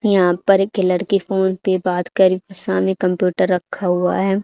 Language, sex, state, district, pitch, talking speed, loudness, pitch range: Hindi, female, Haryana, Charkhi Dadri, 185 Hz, 175 wpm, -18 LUFS, 180-195 Hz